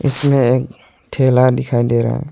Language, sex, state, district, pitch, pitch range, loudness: Hindi, male, Arunachal Pradesh, Longding, 130 Hz, 125-135 Hz, -15 LUFS